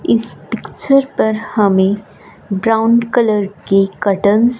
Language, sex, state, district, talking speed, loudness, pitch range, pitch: Hindi, female, Punjab, Fazilka, 115 wpm, -15 LUFS, 200-230 Hz, 215 Hz